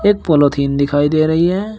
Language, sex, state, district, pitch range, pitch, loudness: Hindi, male, Uttar Pradesh, Shamli, 145-185 Hz, 155 Hz, -14 LUFS